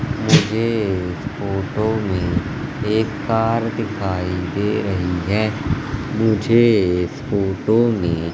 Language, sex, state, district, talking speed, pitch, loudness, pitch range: Hindi, male, Madhya Pradesh, Katni, 100 wpm, 105 Hz, -19 LUFS, 95-115 Hz